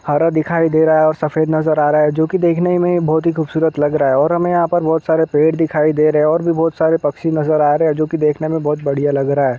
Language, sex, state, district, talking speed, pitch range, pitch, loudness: Hindi, male, Jharkhand, Jamtara, 320 wpm, 150-165 Hz, 155 Hz, -15 LUFS